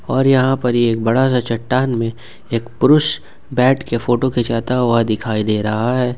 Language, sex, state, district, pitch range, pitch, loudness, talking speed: Hindi, male, Jharkhand, Ranchi, 115-130 Hz, 120 Hz, -16 LUFS, 185 wpm